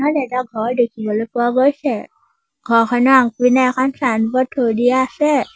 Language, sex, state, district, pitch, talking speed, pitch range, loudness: Assamese, female, Assam, Sonitpur, 255 Hz, 140 wpm, 235-270 Hz, -16 LUFS